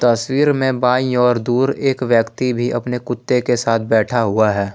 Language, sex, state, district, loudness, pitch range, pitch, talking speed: Hindi, male, Jharkhand, Palamu, -17 LUFS, 115-130 Hz, 125 Hz, 190 wpm